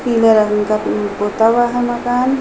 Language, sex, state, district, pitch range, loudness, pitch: Hindi, female, Uttar Pradesh, Hamirpur, 210-245 Hz, -15 LUFS, 230 Hz